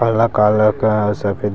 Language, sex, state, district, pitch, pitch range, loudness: Chhattisgarhi, male, Chhattisgarh, Sarguja, 105 Hz, 105-110 Hz, -15 LUFS